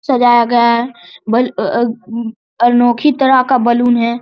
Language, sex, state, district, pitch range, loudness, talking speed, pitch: Hindi, male, Bihar, Lakhisarai, 235-245 Hz, -13 LUFS, 185 wpm, 240 Hz